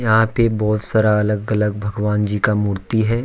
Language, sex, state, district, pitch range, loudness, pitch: Hindi, male, Jharkhand, Deoghar, 105-110 Hz, -18 LUFS, 105 Hz